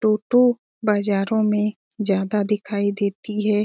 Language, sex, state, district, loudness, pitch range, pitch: Hindi, female, Bihar, Lakhisarai, -21 LUFS, 205-215 Hz, 210 Hz